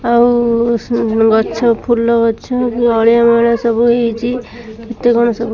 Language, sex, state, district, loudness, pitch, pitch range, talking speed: Odia, female, Odisha, Khordha, -13 LUFS, 235 Hz, 230-240 Hz, 120 wpm